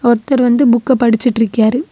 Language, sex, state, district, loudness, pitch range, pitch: Tamil, female, Tamil Nadu, Kanyakumari, -12 LUFS, 230-260 Hz, 240 Hz